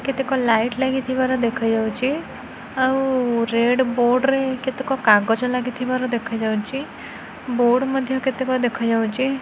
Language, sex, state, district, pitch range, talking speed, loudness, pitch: Odia, female, Odisha, Khordha, 230-265 Hz, 110 wpm, -20 LUFS, 255 Hz